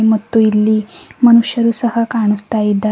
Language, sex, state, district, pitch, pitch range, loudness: Kannada, female, Karnataka, Bidar, 220 Hz, 215-230 Hz, -14 LUFS